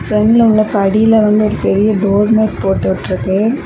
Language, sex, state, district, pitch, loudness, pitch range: Tamil, female, Tamil Nadu, Kanyakumari, 210 Hz, -12 LUFS, 200-220 Hz